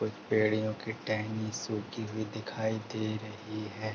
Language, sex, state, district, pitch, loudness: Hindi, male, Uttar Pradesh, Hamirpur, 110 Hz, -34 LUFS